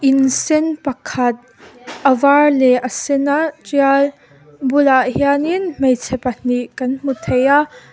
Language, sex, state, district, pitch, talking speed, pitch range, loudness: Mizo, female, Mizoram, Aizawl, 270 Hz, 135 wpm, 255-285 Hz, -16 LUFS